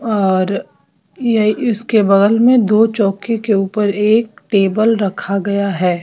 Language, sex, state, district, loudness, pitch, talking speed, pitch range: Hindi, female, Bihar, West Champaran, -14 LUFS, 210 Hz, 130 wpm, 200-225 Hz